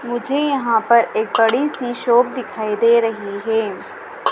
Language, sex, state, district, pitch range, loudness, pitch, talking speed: Hindi, female, Madhya Pradesh, Dhar, 220-245 Hz, -18 LUFS, 235 Hz, 140 wpm